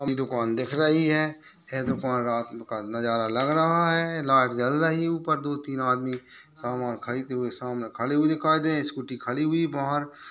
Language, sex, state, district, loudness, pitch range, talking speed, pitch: Hindi, male, Uttar Pradesh, Gorakhpur, -25 LUFS, 125-155 Hz, 210 wpm, 135 Hz